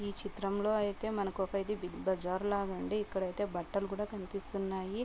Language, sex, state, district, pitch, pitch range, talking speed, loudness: Telugu, female, Andhra Pradesh, Guntur, 200 Hz, 190-205 Hz, 180 wpm, -36 LUFS